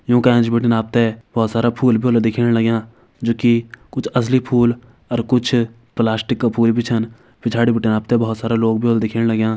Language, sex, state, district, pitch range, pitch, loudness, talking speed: Hindi, male, Uttarakhand, Tehri Garhwal, 115-120 Hz, 115 Hz, -17 LUFS, 215 wpm